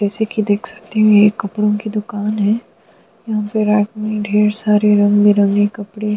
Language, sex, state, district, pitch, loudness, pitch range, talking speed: Hindi, female, Uttar Pradesh, Budaun, 210 Hz, -15 LUFS, 205-215 Hz, 205 wpm